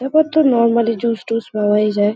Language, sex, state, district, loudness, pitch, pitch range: Bengali, female, West Bengal, Kolkata, -16 LUFS, 230 Hz, 210-250 Hz